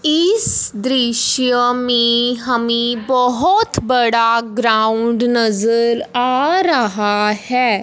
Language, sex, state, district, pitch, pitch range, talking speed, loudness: Hindi, male, Punjab, Fazilka, 240 Hz, 230-255 Hz, 85 wpm, -15 LUFS